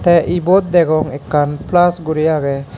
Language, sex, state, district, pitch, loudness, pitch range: Chakma, male, Tripura, Dhalai, 160 Hz, -15 LUFS, 145-175 Hz